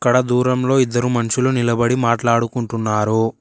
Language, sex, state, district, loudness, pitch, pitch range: Telugu, male, Telangana, Hyderabad, -17 LUFS, 120 Hz, 115-125 Hz